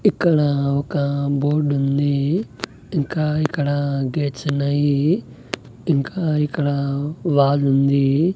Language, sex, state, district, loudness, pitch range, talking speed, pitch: Telugu, male, Andhra Pradesh, Annamaya, -20 LUFS, 140-155 Hz, 85 wpm, 145 Hz